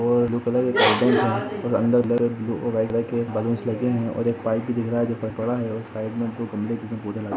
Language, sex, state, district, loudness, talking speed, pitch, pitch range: Hindi, male, Jharkhand, Sahebganj, -23 LUFS, 310 wpm, 115 Hz, 110-120 Hz